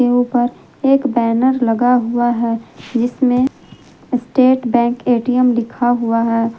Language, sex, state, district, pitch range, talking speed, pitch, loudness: Hindi, female, Jharkhand, Palamu, 235-250 Hz, 130 wpm, 245 Hz, -16 LUFS